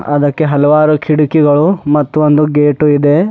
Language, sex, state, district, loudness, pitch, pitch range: Kannada, male, Karnataka, Bidar, -11 LUFS, 150 Hz, 145-155 Hz